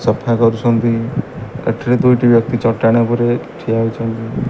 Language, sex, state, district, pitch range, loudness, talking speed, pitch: Odia, male, Odisha, Malkangiri, 115-120 Hz, -15 LUFS, 120 wpm, 115 Hz